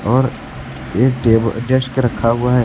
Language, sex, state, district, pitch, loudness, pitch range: Hindi, male, Uttar Pradesh, Lucknow, 125 Hz, -16 LUFS, 115-130 Hz